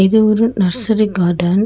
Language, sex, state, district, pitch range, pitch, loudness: Tamil, female, Tamil Nadu, Chennai, 185-220 Hz, 210 Hz, -14 LUFS